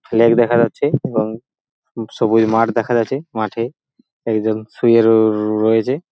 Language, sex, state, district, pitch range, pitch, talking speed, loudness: Bengali, male, West Bengal, Purulia, 110-120 Hz, 115 Hz, 135 wpm, -16 LUFS